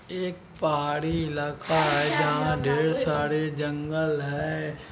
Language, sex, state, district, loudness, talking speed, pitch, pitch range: Hindi, male, Bihar, Araria, -26 LUFS, 110 wpm, 150 Hz, 150-160 Hz